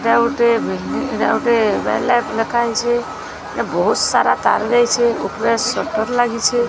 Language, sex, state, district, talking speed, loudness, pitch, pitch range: Odia, female, Odisha, Sambalpur, 105 wpm, -17 LUFS, 235 Hz, 225-240 Hz